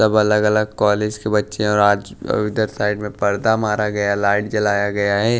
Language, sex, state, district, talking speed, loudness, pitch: Hindi, male, Odisha, Nuapada, 210 wpm, -18 LUFS, 105 Hz